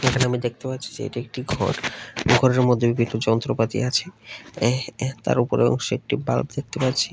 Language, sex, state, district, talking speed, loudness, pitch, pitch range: Bengali, male, Tripura, West Tripura, 185 wpm, -23 LUFS, 125 Hz, 120-130 Hz